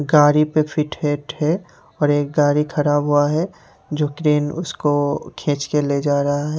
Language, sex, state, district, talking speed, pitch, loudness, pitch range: Hindi, male, Haryana, Charkhi Dadri, 180 wpm, 150 Hz, -19 LUFS, 145-150 Hz